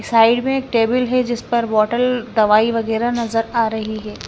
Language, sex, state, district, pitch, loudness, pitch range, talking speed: Hindi, female, Himachal Pradesh, Shimla, 230 Hz, -17 LUFS, 220-240 Hz, 195 wpm